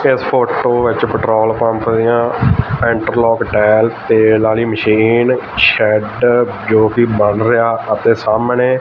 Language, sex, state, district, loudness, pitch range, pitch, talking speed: Punjabi, male, Punjab, Fazilka, -13 LUFS, 110-120 Hz, 115 Hz, 115 wpm